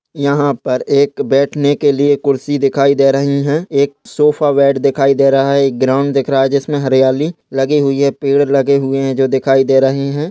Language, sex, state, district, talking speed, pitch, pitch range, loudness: Hindi, male, Chhattisgarh, Bastar, 215 wpm, 140 Hz, 135-145 Hz, -13 LUFS